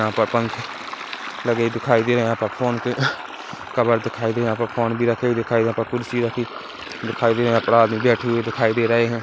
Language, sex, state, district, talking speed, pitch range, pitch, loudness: Hindi, male, Chhattisgarh, Kabirdham, 275 wpm, 115-120 Hz, 115 Hz, -21 LUFS